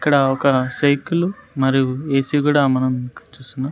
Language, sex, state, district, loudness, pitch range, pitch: Telugu, male, Andhra Pradesh, Sri Satya Sai, -18 LUFS, 130-145 Hz, 135 Hz